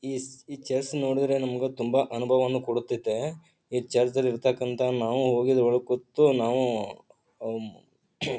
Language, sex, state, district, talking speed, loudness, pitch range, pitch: Kannada, male, Karnataka, Bijapur, 115 wpm, -26 LUFS, 120-135 Hz, 130 Hz